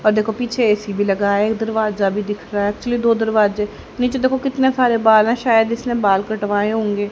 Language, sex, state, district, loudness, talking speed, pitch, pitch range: Hindi, female, Haryana, Jhajjar, -18 LUFS, 220 wpm, 220 Hz, 205-235 Hz